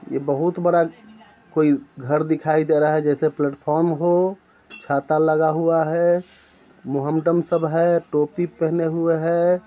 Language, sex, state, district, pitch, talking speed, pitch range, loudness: Hindi, male, Bihar, Muzaffarpur, 165 Hz, 140 wpm, 155-170 Hz, -20 LUFS